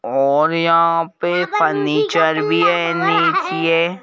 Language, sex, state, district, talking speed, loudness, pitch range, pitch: Hindi, male, Madhya Pradesh, Bhopal, 120 wpm, -16 LUFS, 145-170 Hz, 165 Hz